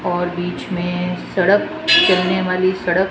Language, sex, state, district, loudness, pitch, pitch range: Hindi, female, Rajasthan, Jaipur, -17 LUFS, 185 Hz, 180-190 Hz